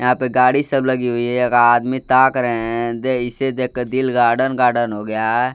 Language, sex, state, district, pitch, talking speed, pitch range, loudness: Hindi, male, Bihar, Kaimur, 125 Hz, 225 wpm, 120-130 Hz, -17 LUFS